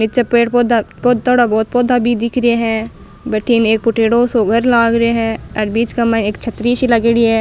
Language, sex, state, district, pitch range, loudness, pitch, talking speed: Rajasthani, female, Rajasthan, Nagaur, 225-240 Hz, -14 LUFS, 235 Hz, 220 wpm